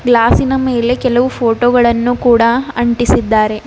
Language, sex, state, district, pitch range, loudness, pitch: Kannada, female, Karnataka, Bidar, 235-245 Hz, -12 LUFS, 240 Hz